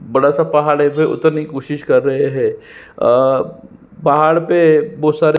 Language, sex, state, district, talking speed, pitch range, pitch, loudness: Hindi, male, Chhattisgarh, Sukma, 180 wpm, 145-175 Hz, 155 Hz, -14 LUFS